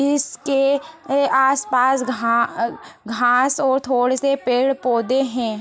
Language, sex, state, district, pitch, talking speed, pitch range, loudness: Hindi, female, Maharashtra, Chandrapur, 265 Hz, 120 wpm, 245-275 Hz, -19 LUFS